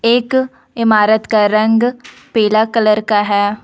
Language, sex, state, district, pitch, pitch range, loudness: Hindi, female, Jharkhand, Ranchi, 220 Hz, 215-235 Hz, -14 LUFS